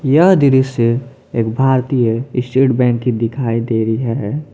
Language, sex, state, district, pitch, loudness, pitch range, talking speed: Hindi, male, Jharkhand, Palamu, 125 Hz, -15 LUFS, 115-135 Hz, 145 wpm